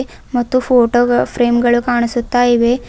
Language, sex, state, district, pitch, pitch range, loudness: Kannada, female, Karnataka, Bidar, 245 Hz, 240-245 Hz, -14 LUFS